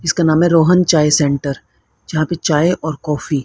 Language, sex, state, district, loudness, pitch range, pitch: Hindi, female, Haryana, Rohtak, -15 LUFS, 150-170 Hz, 155 Hz